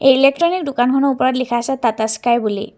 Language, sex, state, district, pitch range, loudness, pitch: Assamese, female, Assam, Kamrup Metropolitan, 235-275 Hz, -16 LUFS, 255 Hz